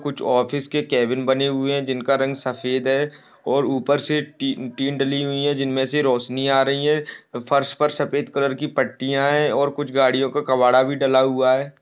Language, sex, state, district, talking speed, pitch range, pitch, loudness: Hindi, male, Chhattisgarh, Balrampur, 210 wpm, 130-145 Hz, 135 Hz, -20 LUFS